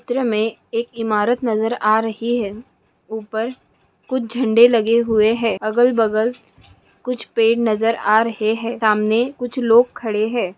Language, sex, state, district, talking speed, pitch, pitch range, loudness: Hindi, female, Maharashtra, Aurangabad, 155 wpm, 230 Hz, 220-240 Hz, -18 LUFS